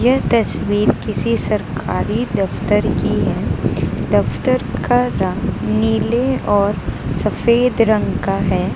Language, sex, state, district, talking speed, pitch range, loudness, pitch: Hindi, female, Gujarat, Valsad, 110 wpm, 185-235 Hz, -17 LUFS, 205 Hz